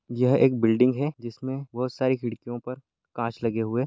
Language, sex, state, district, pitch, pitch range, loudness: Hindi, male, Chhattisgarh, Balrampur, 125 Hz, 115-130 Hz, -26 LUFS